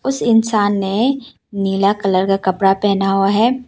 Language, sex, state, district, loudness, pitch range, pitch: Hindi, female, Arunachal Pradesh, Lower Dibang Valley, -16 LUFS, 195-230 Hz, 200 Hz